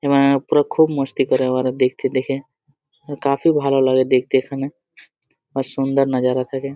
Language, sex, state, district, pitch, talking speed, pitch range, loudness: Bengali, male, Jharkhand, Jamtara, 135 Hz, 160 wpm, 130-140 Hz, -19 LUFS